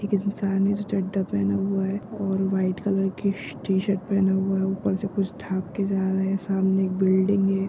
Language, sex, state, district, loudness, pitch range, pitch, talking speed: Hindi, female, Bihar, Jahanabad, -25 LUFS, 190-200 Hz, 195 Hz, 220 wpm